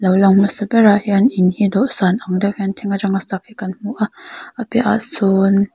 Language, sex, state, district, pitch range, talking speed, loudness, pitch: Mizo, female, Mizoram, Aizawl, 195-220 Hz, 240 wpm, -16 LUFS, 200 Hz